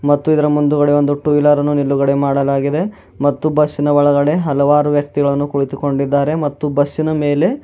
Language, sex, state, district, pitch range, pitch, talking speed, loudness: Kannada, male, Karnataka, Bidar, 140-150 Hz, 145 Hz, 135 wpm, -15 LUFS